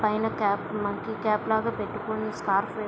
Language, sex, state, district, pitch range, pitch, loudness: Telugu, female, Andhra Pradesh, Visakhapatnam, 205-220 Hz, 215 Hz, -28 LUFS